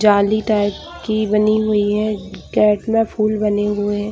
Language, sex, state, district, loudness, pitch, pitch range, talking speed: Hindi, female, Jharkhand, Jamtara, -17 LUFS, 210 Hz, 205-215 Hz, 175 wpm